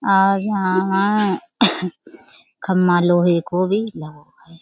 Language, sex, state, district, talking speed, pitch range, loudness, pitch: Hindi, female, Uttar Pradesh, Budaun, 115 wpm, 175-200 Hz, -18 LUFS, 185 Hz